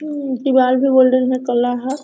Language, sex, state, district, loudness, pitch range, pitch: Hindi, female, Jharkhand, Sahebganj, -16 LUFS, 255-270 Hz, 260 Hz